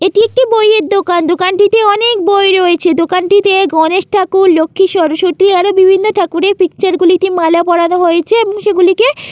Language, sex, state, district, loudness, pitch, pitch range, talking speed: Bengali, female, West Bengal, Jalpaiguri, -10 LUFS, 380 Hz, 350-405 Hz, 160 wpm